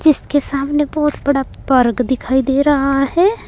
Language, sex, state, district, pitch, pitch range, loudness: Hindi, female, Uttar Pradesh, Saharanpur, 275 Hz, 265-295 Hz, -16 LUFS